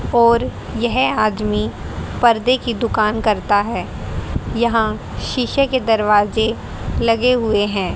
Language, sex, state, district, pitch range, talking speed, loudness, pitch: Hindi, female, Haryana, Rohtak, 205-235 Hz, 115 wpm, -18 LUFS, 225 Hz